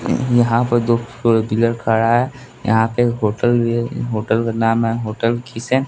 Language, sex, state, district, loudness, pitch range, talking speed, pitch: Hindi, male, Bihar, West Champaran, -18 LUFS, 115-120 Hz, 175 wpm, 115 Hz